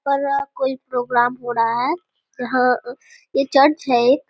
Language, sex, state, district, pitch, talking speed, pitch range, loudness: Hindi, female, Bihar, Vaishali, 265 Hz, 140 wpm, 245-280 Hz, -19 LUFS